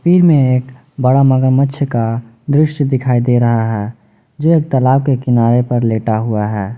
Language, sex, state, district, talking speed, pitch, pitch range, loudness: Hindi, male, Jharkhand, Ranchi, 170 wpm, 125 Hz, 115-140 Hz, -14 LUFS